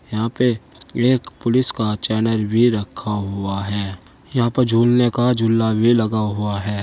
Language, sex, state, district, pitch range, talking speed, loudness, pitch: Hindi, male, Uttar Pradesh, Saharanpur, 105-120 Hz, 165 wpm, -18 LUFS, 110 Hz